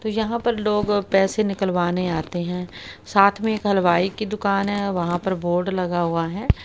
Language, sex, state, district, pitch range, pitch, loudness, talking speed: Hindi, female, Haryana, Rohtak, 175-210 Hz, 195 Hz, -22 LUFS, 180 wpm